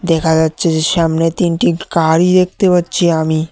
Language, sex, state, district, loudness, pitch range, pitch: Bengali, male, Tripura, West Tripura, -13 LUFS, 160-180 Hz, 165 Hz